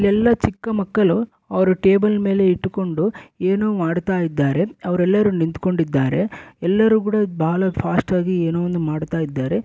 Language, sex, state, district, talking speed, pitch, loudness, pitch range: Kannada, male, Karnataka, Bellary, 130 wpm, 185 Hz, -19 LUFS, 170-205 Hz